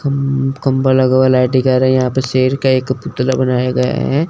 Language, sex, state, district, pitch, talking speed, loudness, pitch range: Hindi, male, Chandigarh, Chandigarh, 130 Hz, 250 wpm, -14 LUFS, 130-135 Hz